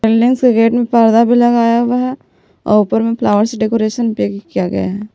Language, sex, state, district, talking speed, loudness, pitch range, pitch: Hindi, female, Jharkhand, Palamu, 220 wpm, -13 LUFS, 215-240 Hz, 230 Hz